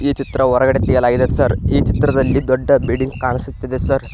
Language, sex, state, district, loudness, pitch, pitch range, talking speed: Kannada, male, Karnataka, Koppal, -16 LUFS, 130 Hz, 125-135 Hz, 175 wpm